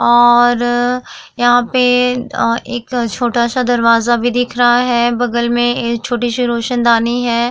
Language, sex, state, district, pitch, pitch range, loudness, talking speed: Hindi, female, Uttar Pradesh, Jyotiba Phule Nagar, 240 Hz, 235-245 Hz, -14 LUFS, 130 wpm